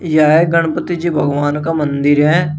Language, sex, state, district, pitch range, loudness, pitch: Hindi, male, Uttar Pradesh, Shamli, 145-165 Hz, -14 LUFS, 155 Hz